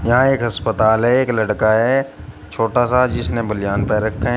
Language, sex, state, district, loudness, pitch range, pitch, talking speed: Hindi, male, Uttar Pradesh, Shamli, -17 LUFS, 105-120 Hz, 115 Hz, 190 wpm